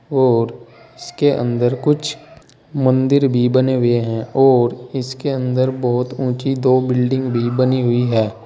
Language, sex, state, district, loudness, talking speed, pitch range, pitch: Hindi, male, Uttar Pradesh, Saharanpur, -17 LUFS, 140 wpm, 120-135 Hz, 130 Hz